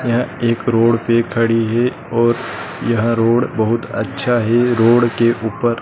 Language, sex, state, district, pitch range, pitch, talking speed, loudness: Hindi, male, Madhya Pradesh, Dhar, 115-120 Hz, 115 Hz, 165 wpm, -16 LUFS